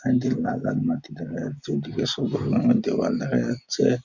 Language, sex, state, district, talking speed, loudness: Bengali, male, West Bengal, Jhargram, 180 wpm, -25 LUFS